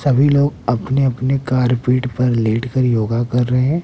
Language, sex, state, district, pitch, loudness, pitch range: Hindi, male, Bihar, West Champaran, 125 Hz, -17 LUFS, 120-135 Hz